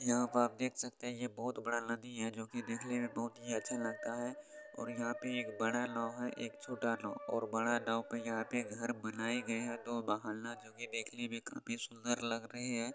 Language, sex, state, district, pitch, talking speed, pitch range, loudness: Hindi, male, Bihar, Supaul, 120 Hz, 240 wpm, 115-120 Hz, -39 LUFS